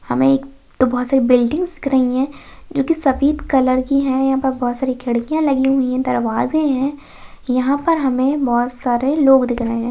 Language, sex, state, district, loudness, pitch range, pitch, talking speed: Hindi, female, Bihar, Saharsa, -17 LUFS, 255-275 Hz, 265 Hz, 195 wpm